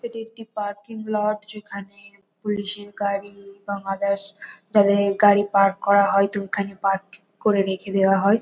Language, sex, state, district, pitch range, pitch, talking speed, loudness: Bengali, female, West Bengal, North 24 Parganas, 200-205 Hz, 200 Hz, 135 wpm, -22 LUFS